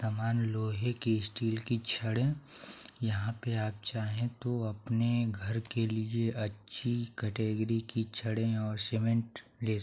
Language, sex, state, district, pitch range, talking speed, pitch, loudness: Hindi, male, Bihar, Saharsa, 110-115 Hz, 145 wpm, 115 Hz, -34 LUFS